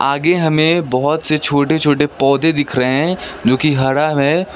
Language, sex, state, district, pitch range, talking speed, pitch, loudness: Hindi, male, West Bengal, Darjeeling, 140-160 Hz, 185 wpm, 145 Hz, -15 LUFS